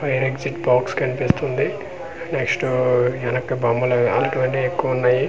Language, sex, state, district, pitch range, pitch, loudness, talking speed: Telugu, male, Andhra Pradesh, Manyam, 125-130 Hz, 125 Hz, -20 LUFS, 100 wpm